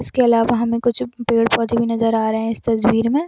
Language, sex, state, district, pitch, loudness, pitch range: Hindi, female, Jharkhand, Sahebganj, 230 Hz, -18 LUFS, 230-240 Hz